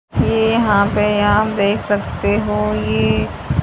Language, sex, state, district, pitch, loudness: Hindi, female, Haryana, Rohtak, 200 Hz, -16 LUFS